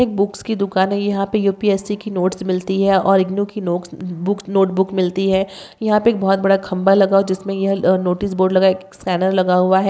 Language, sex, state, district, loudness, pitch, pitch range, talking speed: Hindi, female, Andhra Pradesh, Chittoor, -17 LUFS, 195 Hz, 185-200 Hz, 265 wpm